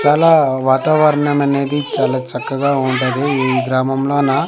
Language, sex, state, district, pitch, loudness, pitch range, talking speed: Telugu, male, Andhra Pradesh, Manyam, 140 Hz, -15 LUFS, 130-145 Hz, 105 wpm